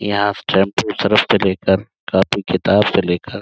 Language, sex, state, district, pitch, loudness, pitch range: Hindi, male, Uttar Pradesh, Budaun, 95 Hz, -16 LUFS, 95-100 Hz